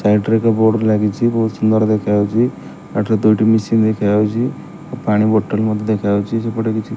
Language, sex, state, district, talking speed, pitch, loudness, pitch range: Odia, male, Odisha, Malkangiri, 165 wpm, 110 Hz, -16 LUFS, 105-115 Hz